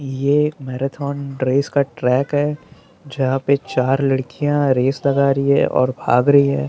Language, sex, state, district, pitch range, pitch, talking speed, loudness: Hindi, male, Maharashtra, Mumbai Suburban, 130-140 Hz, 140 Hz, 170 wpm, -18 LUFS